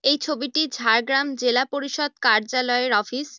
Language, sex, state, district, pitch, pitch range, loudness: Bengali, female, West Bengal, Jhargram, 265 Hz, 245-285 Hz, -21 LUFS